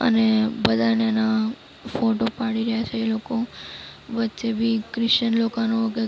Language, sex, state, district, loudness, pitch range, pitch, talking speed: Gujarati, female, Maharashtra, Mumbai Suburban, -23 LUFS, 225-230 Hz, 225 Hz, 150 wpm